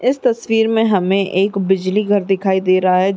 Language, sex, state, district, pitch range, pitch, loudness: Hindi, female, Chhattisgarh, Raigarh, 190-225 Hz, 195 Hz, -16 LUFS